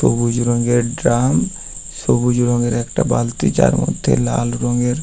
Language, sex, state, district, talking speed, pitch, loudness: Bengali, male, West Bengal, Paschim Medinipur, 130 wpm, 120 Hz, -17 LUFS